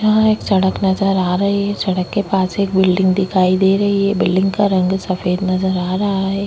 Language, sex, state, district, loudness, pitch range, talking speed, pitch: Hindi, female, Bihar, Vaishali, -16 LUFS, 185-200 Hz, 225 wpm, 190 Hz